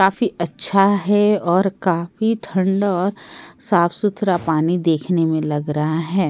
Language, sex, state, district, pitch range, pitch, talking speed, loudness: Hindi, female, Bihar, Katihar, 165-200 Hz, 185 Hz, 145 wpm, -19 LUFS